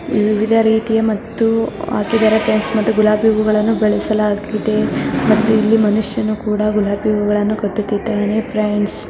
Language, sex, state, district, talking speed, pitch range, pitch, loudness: Kannada, female, Karnataka, Mysore, 125 wpm, 210-220 Hz, 215 Hz, -16 LUFS